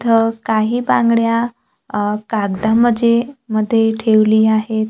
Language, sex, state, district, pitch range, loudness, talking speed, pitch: Marathi, female, Maharashtra, Gondia, 215-235 Hz, -16 LUFS, 100 wpm, 225 Hz